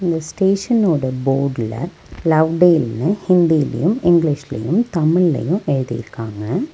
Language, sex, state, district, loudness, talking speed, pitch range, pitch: Tamil, female, Tamil Nadu, Nilgiris, -17 LUFS, 80 wpm, 135-180 Hz, 160 Hz